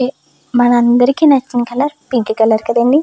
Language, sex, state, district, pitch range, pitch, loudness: Telugu, female, Andhra Pradesh, Chittoor, 240-275 Hz, 245 Hz, -13 LUFS